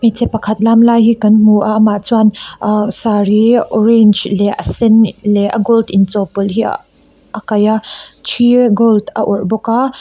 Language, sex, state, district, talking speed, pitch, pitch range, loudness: Mizo, female, Mizoram, Aizawl, 185 wpm, 215 Hz, 210-230 Hz, -12 LUFS